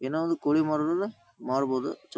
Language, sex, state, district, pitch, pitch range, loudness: Kannada, male, Karnataka, Dharwad, 155 Hz, 135-165 Hz, -28 LUFS